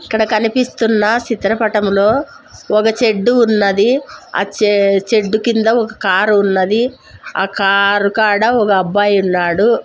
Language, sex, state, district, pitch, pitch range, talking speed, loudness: Telugu, female, Andhra Pradesh, Sri Satya Sai, 215 Hz, 200-225 Hz, 115 wpm, -14 LUFS